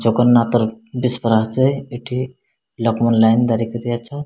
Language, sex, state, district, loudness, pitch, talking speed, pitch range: Odia, male, Odisha, Malkangiri, -18 LUFS, 120 Hz, 125 wpm, 115-125 Hz